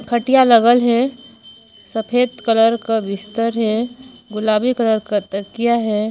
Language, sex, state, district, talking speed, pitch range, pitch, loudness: Chhattisgarhi, female, Chhattisgarh, Sarguja, 125 wpm, 220-240 Hz, 230 Hz, -17 LUFS